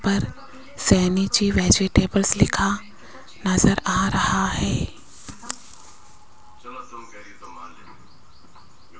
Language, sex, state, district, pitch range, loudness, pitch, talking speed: Hindi, female, Rajasthan, Jaipur, 190-200 Hz, -21 LUFS, 195 Hz, 60 wpm